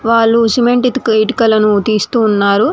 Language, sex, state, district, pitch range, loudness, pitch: Telugu, female, Telangana, Mahabubabad, 215-235 Hz, -12 LUFS, 225 Hz